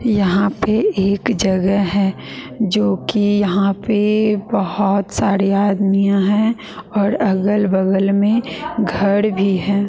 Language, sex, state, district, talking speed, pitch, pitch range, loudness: Hindi, female, Bihar, West Champaran, 120 wpm, 200 Hz, 195-215 Hz, -17 LUFS